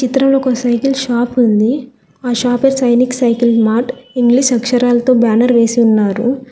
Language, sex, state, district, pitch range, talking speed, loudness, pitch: Telugu, female, Telangana, Hyderabad, 235-255 Hz, 145 wpm, -13 LUFS, 245 Hz